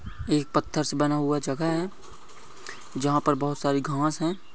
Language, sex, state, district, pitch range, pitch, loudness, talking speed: Hindi, male, Goa, North and South Goa, 140-155 Hz, 145 Hz, -26 LUFS, 185 wpm